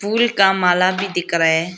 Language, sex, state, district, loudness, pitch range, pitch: Hindi, female, Arunachal Pradesh, Lower Dibang Valley, -16 LUFS, 175-195 Hz, 180 Hz